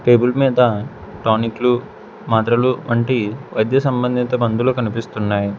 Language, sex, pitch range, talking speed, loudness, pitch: Telugu, male, 110-125 Hz, 105 wpm, -18 LUFS, 120 Hz